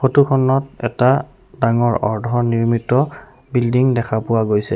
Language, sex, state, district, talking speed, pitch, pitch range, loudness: Assamese, male, Assam, Sonitpur, 115 wpm, 120 Hz, 115-130 Hz, -17 LUFS